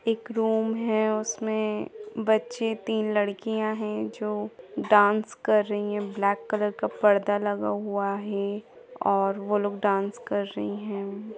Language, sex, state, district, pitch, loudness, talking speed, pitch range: Hindi, female, Jharkhand, Jamtara, 210 Hz, -27 LUFS, 135 wpm, 200-220 Hz